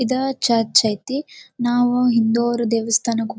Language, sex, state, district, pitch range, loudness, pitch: Kannada, female, Karnataka, Dharwad, 230-250 Hz, -19 LUFS, 240 Hz